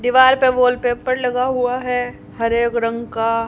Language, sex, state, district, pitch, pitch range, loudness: Hindi, female, Haryana, Charkhi Dadri, 245 Hz, 235-255 Hz, -18 LUFS